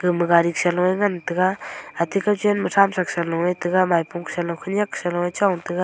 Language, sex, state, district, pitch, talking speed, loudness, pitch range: Wancho, female, Arunachal Pradesh, Longding, 180 Hz, 165 wpm, -21 LUFS, 175-195 Hz